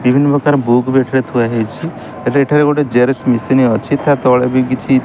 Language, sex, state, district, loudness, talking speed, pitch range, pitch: Odia, male, Odisha, Khordha, -13 LUFS, 225 wpm, 125-140 Hz, 130 Hz